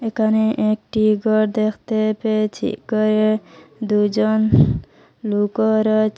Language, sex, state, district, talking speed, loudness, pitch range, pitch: Bengali, female, Assam, Hailakandi, 85 wpm, -19 LUFS, 215-220 Hz, 215 Hz